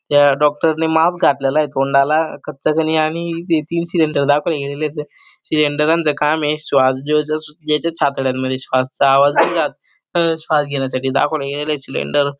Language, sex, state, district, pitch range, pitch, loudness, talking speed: Marathi, male, Maharashtra, Dhule, 140-160 Hz, 150 Hz, -17 LUFS, 135 wpm